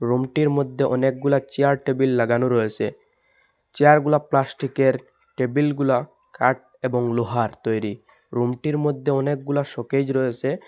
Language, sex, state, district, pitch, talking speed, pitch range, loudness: Bengali, male, Assam, Hailakandi, 135 Hz, 105 wpm, 125-140 Hz, -22 LUFS